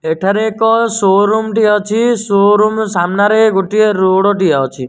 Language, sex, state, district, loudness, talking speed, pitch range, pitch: Odia, male, Odisha, Nuapada, -12 LUFS, 120 wpm, 190-220 Hz, 205 Hz